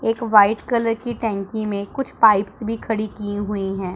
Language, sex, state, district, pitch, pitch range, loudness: Hindi, female, Punjab, Pathankot, 215 Hz, 205-225 Hz, -20 LUFS